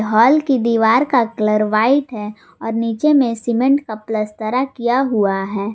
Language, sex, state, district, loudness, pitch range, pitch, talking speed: Hindi, female, Jharkhand, Garhwa, -16 LUFS, 215-260 Hz, 230 Hz, 165 wpm